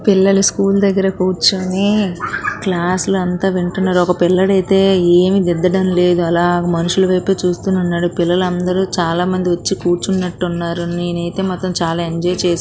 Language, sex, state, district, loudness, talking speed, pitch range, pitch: Telugu, female, Andhra Pradesh, Srikakulam, -15 LUFS, 145 wpm, 175-190 Hz, 180 Hz